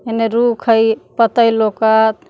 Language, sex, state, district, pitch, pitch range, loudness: Magahi, female, Jharkhand, Palamu, 225 Hz, 220-230 Hz, -14 LUFS